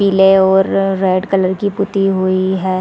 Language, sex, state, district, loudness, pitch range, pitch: Hindi, female, Chhattisgarh, Sarguja, -14 LUFS, 185-195 Hz, 190 Hz